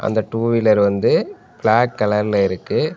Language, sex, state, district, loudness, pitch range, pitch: Tamil, male, Tamil Nadu, Nilgiris, -17 LUFS, 100-110 Hz, 105 Hz